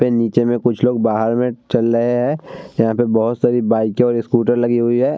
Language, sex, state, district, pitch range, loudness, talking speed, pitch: Hindi, male, Bihar, Vaishali, 115-120 Hz, -17 LUFS, 230 wpm, 120 Hz